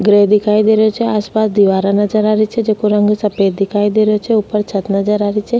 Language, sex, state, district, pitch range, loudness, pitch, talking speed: Rajasthani, female, Rajasthan, Nagaur, 205-215 Hz, -14 LUFS, 210 Hz, 270 wpm